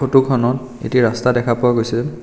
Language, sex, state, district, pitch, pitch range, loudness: Assamese, male, Assam, Kamrup Metropolitan, 125 Hz, 120-130 Hz, -17 LUFS